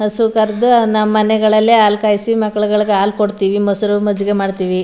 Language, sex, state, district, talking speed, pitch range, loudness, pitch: Kannada, female, Karnataka, Mysore, 150 wpm, 205-215 Hz, -14 LUFS, 210 Hz